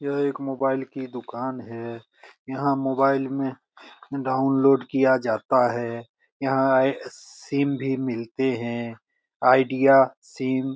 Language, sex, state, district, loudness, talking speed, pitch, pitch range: Hindi, male, Bihar, Lakhisarai, -23 LUFS, 115 wpm, 130 Hz, 125-135 Hz